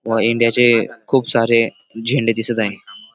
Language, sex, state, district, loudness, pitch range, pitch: Marathi, male, Maharashtra, Dhule, -16 LUFS, 115-120 Hz, 115 Hz